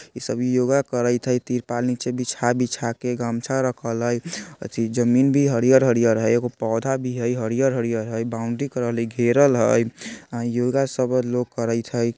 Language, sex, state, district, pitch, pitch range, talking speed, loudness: Bajjika, male, Bihar, Vaishali, 120 Hz, 115-125 Hz, 165 wpm, -22 LUFS